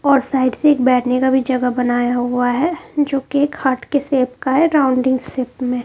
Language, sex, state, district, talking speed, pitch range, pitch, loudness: Hindi, female, Bihar, Kaimur, 225 wpm, 250-280 Hz, 260 Hz, -17 LUFS